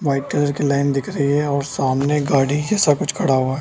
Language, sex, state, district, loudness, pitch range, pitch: Hindi, male, Bihar, Darbhanga, -19 LUFS, 135-150 Hz, 140 Hz